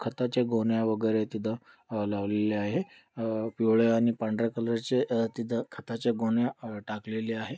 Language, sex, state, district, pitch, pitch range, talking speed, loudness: Marathi, male, Maharashtra, Dhule, 115 Hz, 110-115 Hz, 140 wpm, -29 LUFS